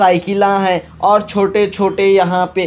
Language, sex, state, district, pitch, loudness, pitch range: Hindi, male, Punjab, Kapurthala, 195 Hz, -14 LUFS, 185-200 Hz